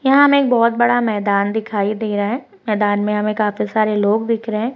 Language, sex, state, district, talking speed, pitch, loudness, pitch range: Hindi, female, West Bengal, Purulia, 240 wpm, 215 Hz, -17 LUFS, 210-235 Hz